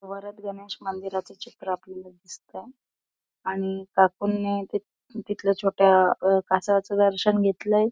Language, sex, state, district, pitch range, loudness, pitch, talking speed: Marathi, female, Maharashtra, Aurangabad, 190-205 Hz, -24 LUFS, 195 Hz, 115 wpm